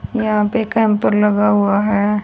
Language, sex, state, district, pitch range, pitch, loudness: Hindi, female, Haryana, Rohtak, 205-215 Hz, 210 Hz, -15 LUFS